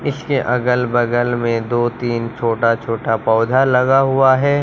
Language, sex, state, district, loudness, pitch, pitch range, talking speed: Hindi, male, Bihar, Katihar, -16 LUFS, 120 Hz, 115-135 Hz, 155 wpm